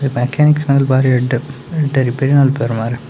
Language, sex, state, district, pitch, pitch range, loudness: Tulu, male, Karnataka, Dakshina Kannada, 135 Hz, 125-140 Hz, -15 LUFS